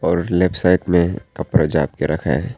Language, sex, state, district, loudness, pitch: Hindi, male, Arunachal Pradesh, Papum Pare, -18 LUFS, 90 Hz